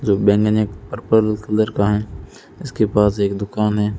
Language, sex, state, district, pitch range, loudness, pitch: Hindi, male, Rajasthan, Bikaner, 100-110 Hz, -18 LUFS, 105 Hz